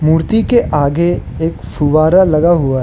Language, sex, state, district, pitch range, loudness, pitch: Hindi, male, Arunachal Pradesh, Lower Dibang Valley, 155-175 Hz, -13 LUFS, 160 Hz